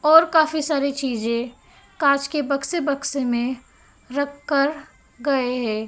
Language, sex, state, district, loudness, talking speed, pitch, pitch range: Hindi, female, Maharashtra, Gondia, -22 LUFS, 135 wpm, 280 Hz, 250-300 Hz